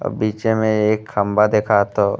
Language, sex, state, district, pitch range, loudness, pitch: Bhojpuri, male, Uttar Pradesh, Gorakhpur, 105-110 Hz, -18 LUFS, 105 Hz